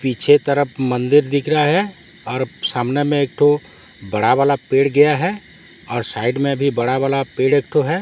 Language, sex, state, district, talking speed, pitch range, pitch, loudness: Hindi, male, Odisha, Sambalpur, 195 wpm, 130-150 Hz, 140 Hz, -17 LUFS